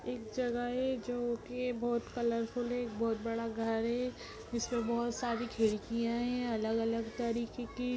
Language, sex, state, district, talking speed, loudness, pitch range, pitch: Hindi, female, Bihar, Jamui, 180 wpm, -35 LUFS, 230-245 Hz, 235 Hz